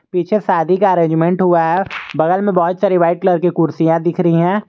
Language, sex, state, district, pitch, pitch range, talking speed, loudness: Hindi, male, Jharkhand, Garhwa, 175 Hz, 165-185 Hz, 215 wpm, -15 LUFS